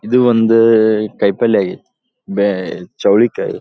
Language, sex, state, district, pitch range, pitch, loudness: Kannada, male, Karnataka, Dharwad, 100-115 Hz, 110 Hz, -14 LUFS